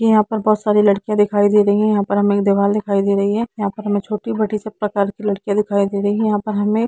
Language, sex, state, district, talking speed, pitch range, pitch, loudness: Hindi, female, Jharkhand, Jamtara, 305 wpm, 200-215 Hz, 210 Hz, -17 LUFS